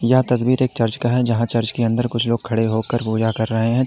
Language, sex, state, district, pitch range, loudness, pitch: Hindi, male, Uttar Pradesh, Lalitpur, 115-125 Hz, -19 LUFS, 115 Hz